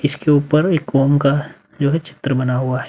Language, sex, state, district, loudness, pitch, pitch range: Hindi, male, Uttar Pradesh, Budaun, -17 LUFS, 145 Hz, 135-150 Hz